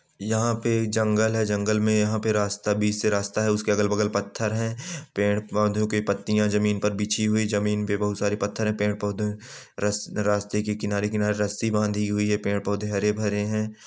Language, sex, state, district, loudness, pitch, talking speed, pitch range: Angika, male, Bihar, Samastipur, -25 LUFS, 105 Hz, 180 wpm, 105-110 Hz